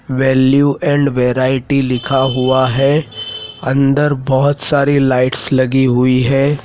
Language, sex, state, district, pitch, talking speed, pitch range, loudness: Hindi, male, Madhya Pradesh, Dhar, 135 Hz, 115 wpm, 130-140 Hz, -13 LUFS